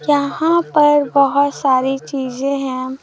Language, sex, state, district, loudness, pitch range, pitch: Hindi, female, Chhattisgarh, Raipur, -16 LUFS, 265-290 Hz, 280 Hz